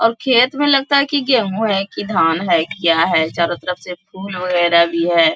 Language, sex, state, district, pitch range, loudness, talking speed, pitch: Hindi, female, Bihar, Bhagalpur, 170-240 Hz, -16 LUFS, 235 wpm, 190 Hz